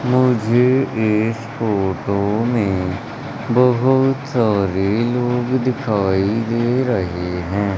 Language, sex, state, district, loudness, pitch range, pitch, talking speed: Hindi, male, Madhya Pradesh, Umaria, -18 LUFS, 100-125 Hz, 115 Hz, 85 wpm